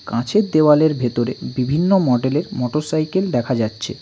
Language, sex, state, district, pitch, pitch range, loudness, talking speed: Bengali, male, West Bengal, Cooch Behar, 150 Hz, 125-155 Hz, -18 LUFS, 120 wpm